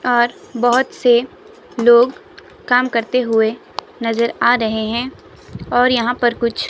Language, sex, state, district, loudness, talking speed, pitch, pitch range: Hindi, female, Himachal Pradesh, Shimla, -16 LUFS, 135 wpm, 245 Hz, 235-255 Hz